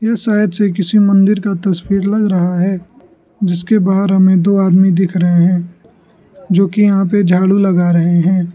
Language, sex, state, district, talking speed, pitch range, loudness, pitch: Hindi, male, Arunachal Pradesh, Lower Dibang Valley, 185 wpm, 180-200 Hz, -12 LUFS, 190 Hz